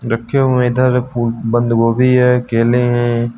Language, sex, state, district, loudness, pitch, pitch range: Hindi, male, Uttar Pradesh, Lucknow, -14 LUFS, 120 Hz, 115-125 Hz